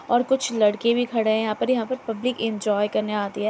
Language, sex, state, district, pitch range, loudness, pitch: Hindi, female, Uttar Pradesh, Jyotiba Phule Nagar, 215-240 Hz, -23 LUFS, 225 Hz